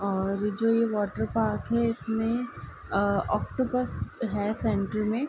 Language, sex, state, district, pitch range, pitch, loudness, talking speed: Hindi, female, Uttar Pradesh, Ghazipur, 205-235 Hz, 220 Hz, -28 LUFS, 135 wpm